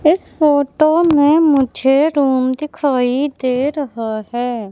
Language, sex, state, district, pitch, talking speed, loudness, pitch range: Hindi, female, Madhya Pradesh, Katni, 280 Hz, 115 wpm, -15 LUFS, 255-300 Hz